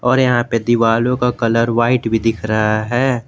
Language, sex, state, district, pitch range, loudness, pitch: Hindi, male, Jharkhand, Garhwa, 115-125 Hz, -16 LUFS, 120 Hz